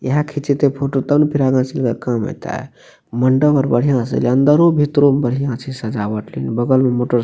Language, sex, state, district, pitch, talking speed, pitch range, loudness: Maithili, male, Bihar, Madhepura, 130 Hz, 225 wpm, 120-145 Hz, -16 LUFS